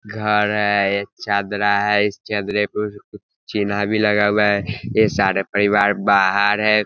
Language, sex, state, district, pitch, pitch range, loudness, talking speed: Hindi, male, Bihar, Sitamarhi, 105 Hz, 100-105 Hz, -18 LUFS, 155 wpm